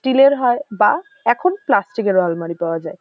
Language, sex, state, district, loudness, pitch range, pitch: Bengali, female, West Bengal, North 24 Parganas, -17 LUFS, 185-280 Hz, 240 Hz